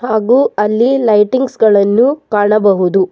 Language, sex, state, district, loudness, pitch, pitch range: Kannada, female, Karnataka, Bangalore, -11 LUFS, 215 Hz, 205-250 Hz